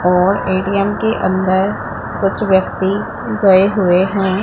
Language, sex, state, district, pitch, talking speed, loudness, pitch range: Hindi, female, Punjab, Pathankot, 190 Hz, 120 wpm, -15 LUFS, 185-200 Hz